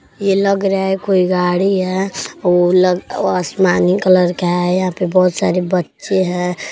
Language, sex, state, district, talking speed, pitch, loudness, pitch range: Bhojpuri, female, Uttar Pradesh, Deoria, 185 wpm, 185 Hz, -15 LUFS, 180-190 Hz